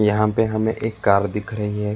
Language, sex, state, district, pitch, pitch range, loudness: Hindi, male, Karnataka, Bangalore, 105 Hz, 105-110 Hz, -21 LUFS